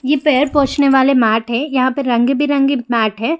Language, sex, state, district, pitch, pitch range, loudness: Hindi, female, Bihar, Jamui, 270 Hz, 240-285 Hz, -14 LUFS